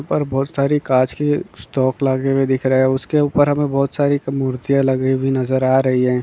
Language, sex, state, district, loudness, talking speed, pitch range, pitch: Hindi, male, Bihar, Kishanganj, -17 LUFS, 210 wpm, 130-140 Hz, 135 Hz